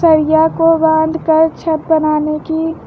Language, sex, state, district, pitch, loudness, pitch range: Hindi, female, Uttar Pradesh, Lucknow, 320 Hz, -13 LUFS, 315-325 Hz